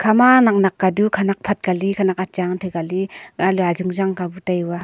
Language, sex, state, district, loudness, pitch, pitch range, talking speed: Wancho, female, Arunachal Pradesh, Longding, -18 LUFS, 190 Hz, 180-195 Hz, 175 wpm